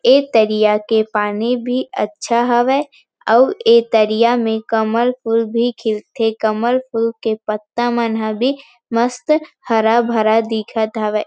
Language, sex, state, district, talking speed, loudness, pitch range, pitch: Chhattisgarhi, female, Chhattisgarh, Rajnandgaon, 140 wpm, -16 LUFS, 220-245 Hz, 230 Hz